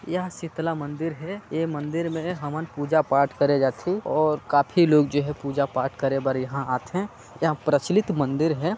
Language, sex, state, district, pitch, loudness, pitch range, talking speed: Chhattisgarhi, male, Chhattisgarh, Sarguja, 150 Hz, -24 LUFS, 140-165 Hz, 185 wpm